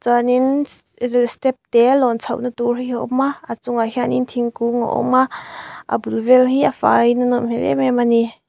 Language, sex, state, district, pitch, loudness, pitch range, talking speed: Mizo, female, Mizoram, Aizawl, 245 Hz, -17 LUFS, 235-255 Hz, 240 wpm